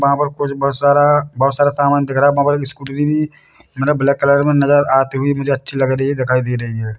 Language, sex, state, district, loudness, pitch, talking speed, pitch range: Hindi, male, Chhattisgarh, Bilaspur, -15 LUFS, 140 Hz, 230 wpm, 135-145 Hz